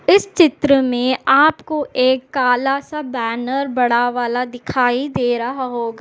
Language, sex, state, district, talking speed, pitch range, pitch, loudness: Hindi, female, Chhattisgarh, Bastar, 140 wpm, 245-275 Hz, 255 Hz, -17 LUFS